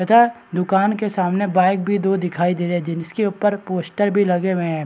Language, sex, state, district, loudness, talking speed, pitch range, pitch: Hindi, male, Chhattisgarh, Raigarh, -19 LUFS, 210 wpm, 175-205 Hz, 190 Hz